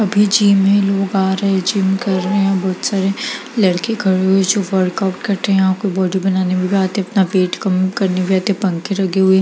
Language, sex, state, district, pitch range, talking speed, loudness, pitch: Hindi, female, Bihar, Gaya, 185-200 Hz, 240 wpm, -16 LUFS, 195 Hz